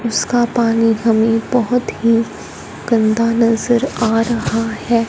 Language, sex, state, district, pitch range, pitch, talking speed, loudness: Hindi, female, Punjab, Fazilka, 225-235 Hz, 230 Hz, 120 wpm, -16 LUFS